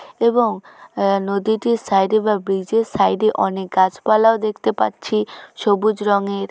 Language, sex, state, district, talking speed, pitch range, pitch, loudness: Bengali, female, West Bengal, Jhargram, 120 wpm, 195-220 Hz, 205 Hz, -18 LUFS